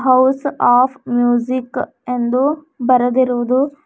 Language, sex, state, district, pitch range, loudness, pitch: Kannada, female, Karnataka, Bidar, 245-265 Hz, -16 LUFS, 255 Hz